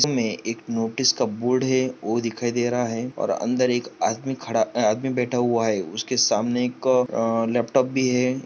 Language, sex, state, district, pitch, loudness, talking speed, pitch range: Hindi, male, Maharashtra, Pune, 120 Hz, -23 LUFS, 190 wpm, 115-125 Hz